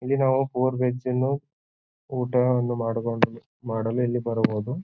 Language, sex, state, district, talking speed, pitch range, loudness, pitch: Kannada, male, Karnataka, Bijapur, 125 wpm, 115-130 Hz, -25 LUFS, 125 Hz